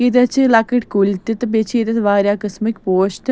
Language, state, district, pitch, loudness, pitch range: Kashmiri, Punjab, Kapurthala, 225 Hz, -16 LUFS, 205-240 Hz